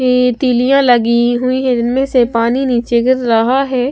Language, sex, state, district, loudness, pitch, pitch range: Hindi, female, Bihar, West Champaran, -13 LUFS, 250 Hz, 240-260 Hz